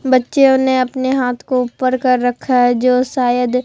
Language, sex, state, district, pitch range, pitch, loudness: Hindi, female, Bihar, Katihar, 250-260 Hz, 255 Hz, -15 LUFS